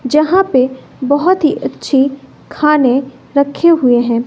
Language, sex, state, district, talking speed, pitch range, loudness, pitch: Hindi, female, Bihar, West Champaran, 125 wpm, 255-305 Hz, -13 LUFS, 280 Hz